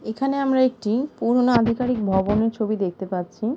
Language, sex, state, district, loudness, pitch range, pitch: Bengali, female, West Bengal, Purulia, -22 LUFS, 210-250 Hz, 230 Hz